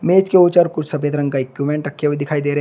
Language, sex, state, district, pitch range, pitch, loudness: Hindi, male, Uttar Pradesh, Shamli, 145-170 Hz, 150 Hz, -17 LUFS